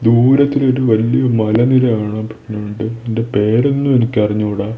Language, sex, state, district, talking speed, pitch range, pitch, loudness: Malayalam, male, Kerala, Thiruvananthapuram, 90 wpm, 110-125 Hz, 115 Hz, -15 LUFS